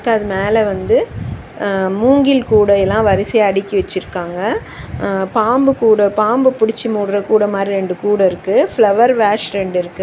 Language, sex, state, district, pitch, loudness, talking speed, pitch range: Tamil, female, Tamil Nadu, Chennai, 205 Hz, -14 LUFS, 145 wpm, 195-225 Hz